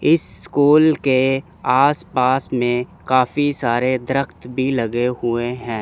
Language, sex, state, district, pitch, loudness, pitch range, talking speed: Hindi, male, Chandigarh, Chandigarh, 130 Hz, -18 LUFS, 120-140 Hz, 135 wpm